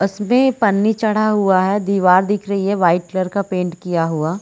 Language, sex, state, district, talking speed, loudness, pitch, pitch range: Hindi, female, Chhattisgarh, Bilaspur, 215 wpm, -17 LUFS, 195 Hz, 180-205 Hz